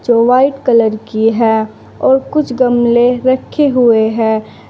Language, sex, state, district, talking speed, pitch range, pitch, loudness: Hindi, female, Uttar Pradesh, Saharanpur, 140 wpm, 225-260 Hz, 240 Hz, -12 LUFS